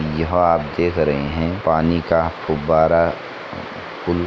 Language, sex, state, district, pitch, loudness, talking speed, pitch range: Hindi, male, Uttar Pradesh, Etah, 80 Hz, -18 LUFS, 140 wpm, 80-85 Hz